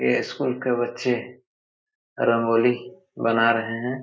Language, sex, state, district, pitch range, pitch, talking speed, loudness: Hindi, male, Chhattisgarh, Raigarh, 115-130 Hz, 120 Hz, 135 wpm, -23 LUFS